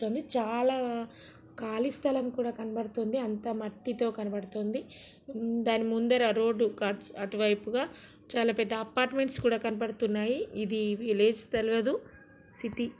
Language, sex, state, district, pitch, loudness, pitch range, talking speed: Telugu, female, Andhra Pradesh, Srikakulam, 230 Hz, -30 LUFS, 220-245 Hz, 105 wpm